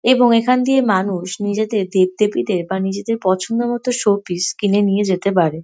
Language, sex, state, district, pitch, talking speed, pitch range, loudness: Bengali, female, West Bengal, North 24 Parganas, 205 Hz, 170 wpm, 185-230 Hz, -17 LUFS